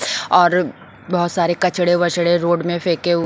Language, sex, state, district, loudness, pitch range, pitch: Hindi, female, Bihar, Patna, -17 LUFS, 170-175 Hz, 175 Hz